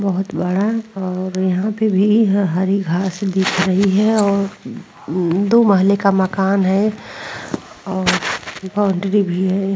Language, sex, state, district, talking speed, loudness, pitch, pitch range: Hindi, female, Uttar Pradesh, Muzaffarnagar, 130 wpm, -17 LUFS, 195 Hz, 185-205 Hz